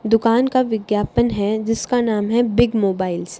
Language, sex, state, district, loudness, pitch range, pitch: Hindi, female, Haryana, Charkhi Dadri, -18 LUFS, 205-240 Hz, 225 Hz